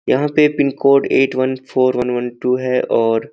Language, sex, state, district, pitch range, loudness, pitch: Hindi, male, Uttarakhand, Uttarkashi, 125-140 Hz, -16 LUFS, 130 Hz